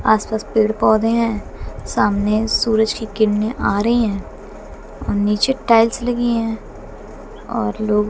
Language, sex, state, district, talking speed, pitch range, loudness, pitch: Hindi, female, Haryana, Jhajjar, 135 wpm, 210-230 Hz, -18 LUFS, 220 Hz